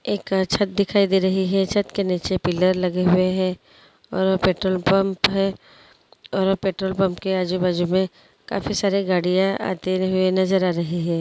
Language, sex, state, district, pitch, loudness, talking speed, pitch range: Hindi, female, Chhattisgarh, Korba, 190 Hz, -21 LUFS, 170 wpm, 185-195 Hz